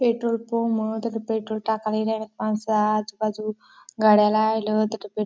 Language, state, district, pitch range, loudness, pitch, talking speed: Bhili, Maharashtra, Dhule, 215-225 Hz, -23 LUFS, 215 Hz, 160 wpm